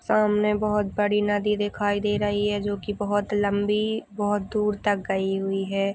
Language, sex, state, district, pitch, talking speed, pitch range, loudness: Hindi, female, Uttarakhand, Uttarkashi, 205 Hz, 180 wpm, 205-210 Hz, -25 LUFS